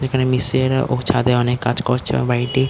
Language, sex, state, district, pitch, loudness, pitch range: Bengali, male, West Bengal, Dakshin Dinajpur, 125 Hz, -18 LUFS, 125-130 Hz